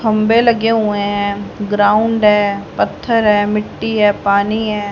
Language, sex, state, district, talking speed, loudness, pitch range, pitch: Hindi, female, Haryana, Charkhi Dadri, 145 wpm, -14 LUFS, 205-220 Hz, 210 Hz